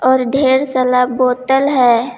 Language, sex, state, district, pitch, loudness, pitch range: Hindi, female, Jharkhand, Palamu, 255 Hz, -13 LUFS, 250-265 Hz